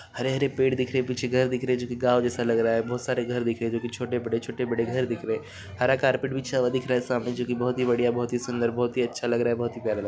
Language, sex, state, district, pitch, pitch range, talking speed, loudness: Bhojpuri, male, Bihar, Saran, 120 Hz, 120-125 Hz, 320 wpm, -26 LUFS